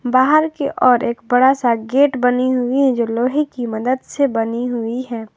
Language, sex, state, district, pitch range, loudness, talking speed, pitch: Hindi, female, Jharkhand, Ranchi, 235-265 Hz, -17 LUFS, 200 wpm, 250 Hz